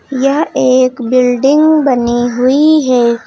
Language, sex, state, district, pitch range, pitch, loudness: Hindi, female, Uttar Pradesh, Lucknow, 245-280 Hz, 255 Hz, -11 LUFS